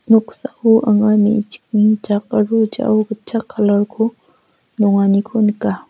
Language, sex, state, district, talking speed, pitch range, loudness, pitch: Garo, female, Meghalaya, West Garo Hills, 110 wpm, 210-225 Hz, -16 LUFS, 215 Hz